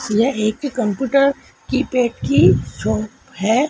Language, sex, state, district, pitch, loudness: Hindi, female, Madhya Pradesh, Dhar, 230 Hz, -18 LUFS